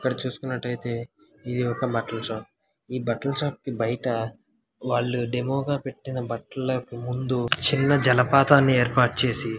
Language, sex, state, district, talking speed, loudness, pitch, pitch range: Telugu, male, Telangana, Karimnagar, 125 wpm, -24 LUFS, 125 Hz, 120-130 Hz